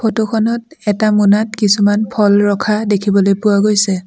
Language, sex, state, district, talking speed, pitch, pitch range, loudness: Assamese, female, Assam, Sonitpur, 145 wpm, 205 Hz, 205-215 Hz, -13 LUFS